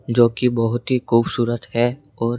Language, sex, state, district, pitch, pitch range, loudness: Hindi, male, Rajasthan, Jaipur, 120 Hz, 115-125 Hz, -20 LUFS